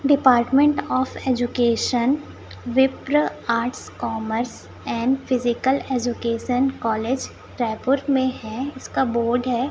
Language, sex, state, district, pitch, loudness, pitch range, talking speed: Hindi, female, Chhattisgarh, Raipur, 255 Hz, -22 LUFS, 235-265 Hz, 100 wpm